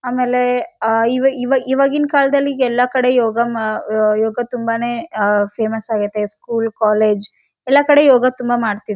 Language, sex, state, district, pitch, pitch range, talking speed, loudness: Kannada, female, Karnataka, Raichur, 235 Hz, 220-255 Hz, 155 wpm, -16 LUFS